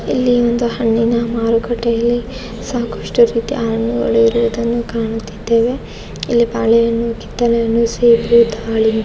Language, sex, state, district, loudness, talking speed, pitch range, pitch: Kannada, female, Karnataka, Chamarajanagar, -15 LUFS, 115 wpm, 225-235 Hz, 230 Hz